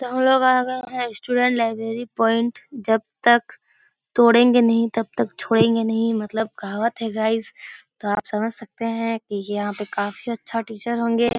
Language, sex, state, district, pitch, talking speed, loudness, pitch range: Hindi, female, Bihar, Darbhanga, 230 Hz, 170 wpm, -21 LUFS, 220-240 Hz